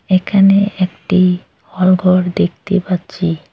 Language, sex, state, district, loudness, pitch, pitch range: Bengali, female, West Bengal, Cooch Behar, -14 LUFS, 185 Hz, 180-195 Hz